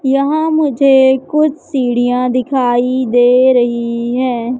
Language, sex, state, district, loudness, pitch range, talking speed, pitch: Hindi, female, Madhya Pradesh, Katni, -13 LUFS, 245-275 Hz, 105 wpm, 255 Hz